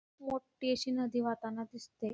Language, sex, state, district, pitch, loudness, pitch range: Marathi, female, Karnataka, Belgaum, 245 Hz, -37 LUFS, 230-260 Hz